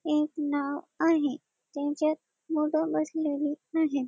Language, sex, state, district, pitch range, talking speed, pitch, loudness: Marathi, female, Maharashtra, Dhule, 290-315 Hz, 105 wpm, 305 Hz, -29 LUFS